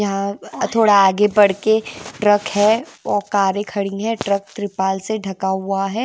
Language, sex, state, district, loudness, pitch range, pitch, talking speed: Hindi, female, Himachal Pradesh, Shimla, -18 LUFS, 195-210 Hz, 205 Hz, 160 wpm